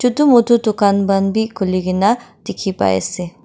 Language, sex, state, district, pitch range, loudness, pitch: Nagamese, female, Nagaland, Dimapur, 185-235 Hz, -16 LUFS, 200 Hz